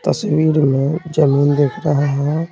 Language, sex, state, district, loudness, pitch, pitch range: Hindi, male, Bihar, Patna, -16 LUFS, 145 Hz, 145-155 Hz